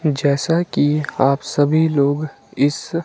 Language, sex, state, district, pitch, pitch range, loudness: Hindi, male, Himachal Pradesh, Shimla, 145 Hz, 140-160 Hz, -18 LUFS